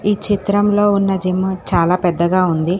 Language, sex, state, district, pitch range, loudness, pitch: Telugu, female, Telangana, Hyderabad, 180-205 Hz, -16 LUFS, 185 Hz